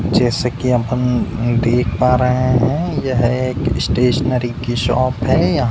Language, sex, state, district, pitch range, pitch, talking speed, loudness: Hindi, male, Uttar Pradesh, Budaun, 120-130 Hz, 125 Hz, 155 wpm, -16 LUFS